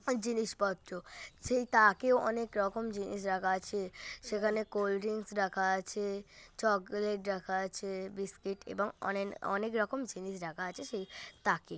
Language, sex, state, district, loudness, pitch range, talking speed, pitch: Bengali, female, West Bengal, Kolkata, -35 LUFS, 190-215 Hz, 125 wpm, 200 Hz